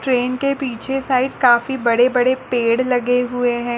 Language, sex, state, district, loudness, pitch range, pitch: Hindi, female, Chhattisgarh, Balrampur, -18 LUFS, 245-260 Hz, 250 Hz